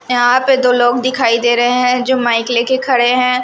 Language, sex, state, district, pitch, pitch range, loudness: Hindi, female, Maharashtra, Washim, 250 Hz, 240-255 Hz, -13 LUFS